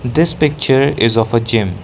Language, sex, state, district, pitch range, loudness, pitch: English, male, Arunachal Pradesh, Lower Dibang Valley, 115-145 Hz, -14 LUFS, 125 Hz